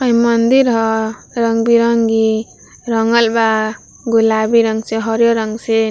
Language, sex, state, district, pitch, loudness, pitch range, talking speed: Bhojpuri, female, Bihar, Gopalganj, 225 Hz, -14 LUFS, 220-235 Hz, 120 wpm